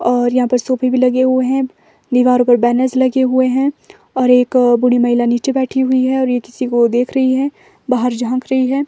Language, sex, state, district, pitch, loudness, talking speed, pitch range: Hindi, female, Himachal Pradesh, Shimla, 255 Hz, -14 LUFS, 225 wpm, 245-260 Hz